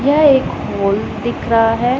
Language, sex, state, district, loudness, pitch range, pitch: Hindi, male, Punjab, Pathankot, -15 LUFS, 225-265 Hz, 240 Hz